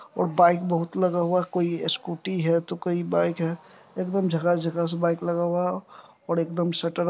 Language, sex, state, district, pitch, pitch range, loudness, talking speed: Hindi, male, Bihar, Supaul, 175 Hz, 170-175 Hz, -25 LUFS, 170 wpm